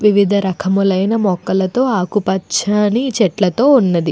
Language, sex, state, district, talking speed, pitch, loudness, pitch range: Telugu, female, Andhra Pradesh, Anantapur, 85 wpm, 200 Hz, -15 LUFS, 190-215 Hz